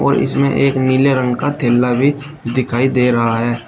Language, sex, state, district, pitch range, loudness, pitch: Hindi, male, Uttar Pradesh, Shamli, 120-140 Hz, -15 LUFS, 130 Hz